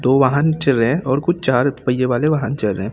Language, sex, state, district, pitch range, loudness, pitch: Hindi, male, Chhattisgarh, Raipur, 125-150 Hz, -17 LUFS, 135 Hz